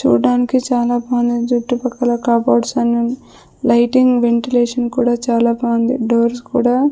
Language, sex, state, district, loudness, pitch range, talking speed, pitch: Telugu, female, Andhra Pradesh, Sri Satya Sai, -16 LUFS, 235-245 Hz, 140 wpm, 240 Hz